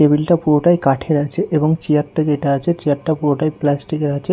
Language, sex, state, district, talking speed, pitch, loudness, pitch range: Bengali, male, Odisha, Nuapada, 220 wpm, 150 Hz, -17 LUFS, 145-160 Hz